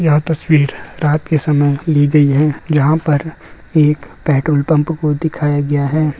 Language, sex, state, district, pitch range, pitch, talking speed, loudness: Hindi, male, Bihar, Darbhanga, 145-155 Hz, 150 Hz, 165 wpm, -15 LUFS